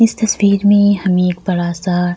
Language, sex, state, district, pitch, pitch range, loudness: Hindi, female, Bihar, Kishanganj, 190 Hz, 180-205 Hz, -14 LUFS